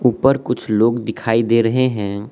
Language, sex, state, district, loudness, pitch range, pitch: Hindi, male, Arunachal Pradesh, Lower Dibang Valley, -17 LUFS, 110-125 Hz, 115 Hz